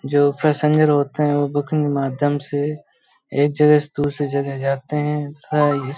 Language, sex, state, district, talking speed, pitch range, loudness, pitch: Hindi, male, Uttar Pradesh, Hamirpur, 160 wpm, 145-150 Hz, -19 LUFS, 145 Hz